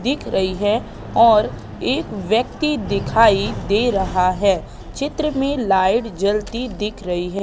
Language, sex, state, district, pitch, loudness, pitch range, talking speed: Hindi, female, Madhya Pradesh, Katni, 210 Hz, -19 LUFS, 190-235 Hz, 135 wpm